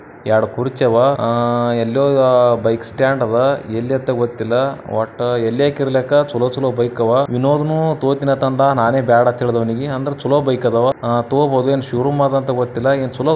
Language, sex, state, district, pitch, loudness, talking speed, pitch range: Kannada, male, Karnataka, Bijapur, 130 Hz, -16 LUFS, 180 wpm, 120-140 Hz